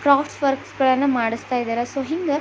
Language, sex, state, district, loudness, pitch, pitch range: Kannada, female, Karnataka, Belgaum, -21 LUFS, 270 Hz, 245-280 Hz